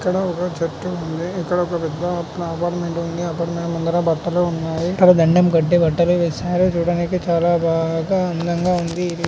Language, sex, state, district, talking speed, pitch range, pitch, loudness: Telugu, male, Andhra Pradesh, Chittoor, 175 wpm, 165-175 Hz, 170 Hz, -19 LUFS